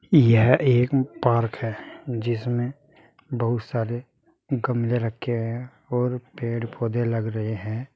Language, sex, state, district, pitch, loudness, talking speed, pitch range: Hindi, male, Uttar Pradesh, Saharanpur, 120 Hz, -24 LUFS, 120 wpm, 115-125 Hz